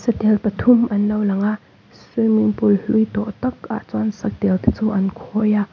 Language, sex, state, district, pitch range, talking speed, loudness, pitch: Mizo, female, Mizoram, Aizawl, 205-220 Hz, 190 wpm, -19 LUFS, 215 Hz